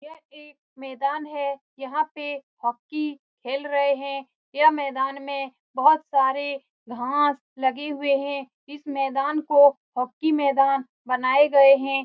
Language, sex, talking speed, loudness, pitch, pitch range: Hindi, female, 135 wpm, -23 LUFS, 280 Hz, 270-290 Hz